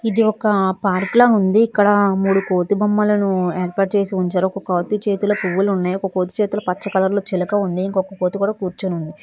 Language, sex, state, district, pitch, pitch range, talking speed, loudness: Telugu, female, Telangana, Hyderabad, 195 Hz, 185-205 Hz, 190 wpm, -18 LUFS